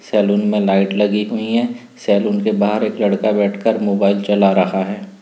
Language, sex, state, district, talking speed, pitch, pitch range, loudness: Hindi, male, Uttar Pradesh, Budaun, 185 wpm, 105 Hz, 100-115 Hz, -17 LUFS